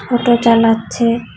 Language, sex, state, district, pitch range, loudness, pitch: Bengali, female, Tripura, West Tripura, 225-240 Hz, -13 LUFS, 235 Hz